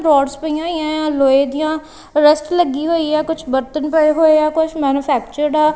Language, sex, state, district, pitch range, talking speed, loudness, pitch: Punjabi, female, Punjab, Kapurthala, 290-315 Hz, 190 wpm, -16 LUFS, 305 Hz